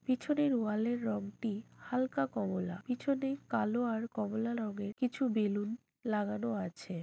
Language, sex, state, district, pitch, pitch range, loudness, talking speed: Bengali, female, West Bengal, Jhargram, 225 Hz, 205-245 Hz, -35 LUFS, 135 wpm